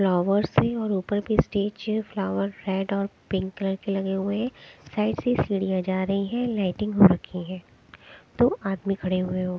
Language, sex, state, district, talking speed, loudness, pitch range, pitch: Hindi, female, Odisha, Sambalpur, 180 wpm, -25 LUFS, 185-205 Hz, 195 Hz